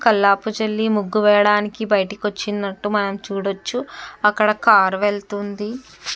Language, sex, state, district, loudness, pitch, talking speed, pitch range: Telugu, female, Andhra Pradesh, Chittoor, -19 LUFS, 210 Hz, 105 wpm, 200-215 Hz